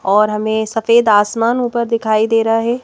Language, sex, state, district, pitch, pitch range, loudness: Hindi, female, Madhya Pradesh, Bhopal, 225 Hz, 215-235 Hz, -14 LUFS